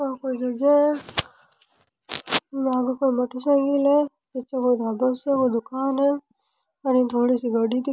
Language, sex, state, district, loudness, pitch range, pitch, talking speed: Rajasthani, male, Rajasthan, Nagaur, -23 LUFS, 250-280 Hz, 260 Hz, 175 wpm